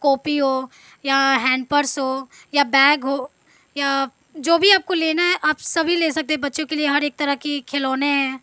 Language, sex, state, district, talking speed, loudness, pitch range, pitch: Hindi, female, Bihar, Patna, 200 wpm, -19 LUFS, 270-305 Hz, 285 Hz